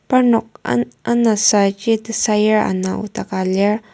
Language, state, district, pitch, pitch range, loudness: Ao, Nagaland, Kohima, 215 Hz, 195-225 Hz, -17 LUFS